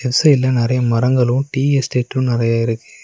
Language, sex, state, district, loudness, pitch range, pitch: Tamil, male, Tamil Nadu, Nilgiris, -16 LUFS, 120-135 Hz, 125 Hz